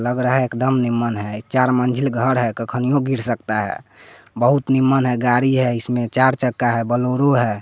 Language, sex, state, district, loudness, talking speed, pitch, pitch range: Hindi, male, Bihar, West Champaran, -18 LUFS, 195 wpm, 125 Hz, 120-130 Hz